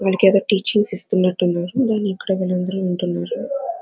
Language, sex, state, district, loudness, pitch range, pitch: Telugu, female, Andhra Pradesh, Anantapur, -19 LUFS, 180-210 Hz, 190 Hz